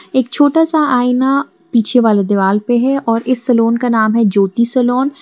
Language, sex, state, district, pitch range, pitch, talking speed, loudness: Hindi, female, Jharkhand, Garhwa, 230-270 Hz, 245 Hz, 205 wpm, -13 LUFS